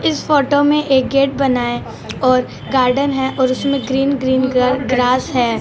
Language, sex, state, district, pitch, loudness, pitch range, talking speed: Hindi, female, Punjab, Fazilka, 265 Hz, -16 LUFS, 255-275 Hz, 170 wpm